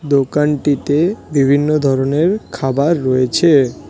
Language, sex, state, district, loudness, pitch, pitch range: Bengali, male, West Bengal, Cooch Behar, -15 LUFS, 145 Hz, 135-155 Hz